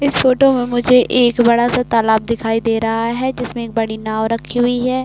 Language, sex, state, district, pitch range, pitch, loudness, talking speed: Hindi, female, Uttar Pradesh, Varanasi, 225-250 Hz, 240 Hz, -15 LUFS, 225 wpm